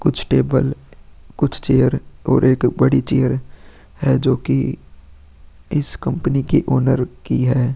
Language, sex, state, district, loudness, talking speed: Hindi, male, Uttar Pradesh, Hamirpur, -18 LUFS, 125 wpm